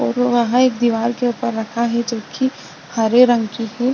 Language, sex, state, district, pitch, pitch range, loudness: Hindi, female, Uttar Pradesh, Budaun, 235 Hz, 230-245 Hz, -18 LUFS